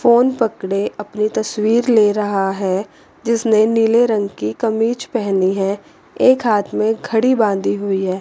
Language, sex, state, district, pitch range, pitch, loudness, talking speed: Hindi, female, Chandigarh, Chandigarh, 200-230 Hz, 215 Hz, -17 LUFS, 155 wpm